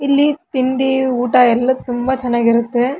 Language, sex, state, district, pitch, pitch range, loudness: Kannada, female, Karnataka, Raichur, 255 Hz, 245-265 Hz, -15 LUFS